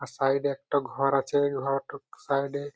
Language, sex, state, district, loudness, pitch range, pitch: Bengali, male, West Bengal, Malda, -27 LUFS, 135-140 Hz, 140 Hz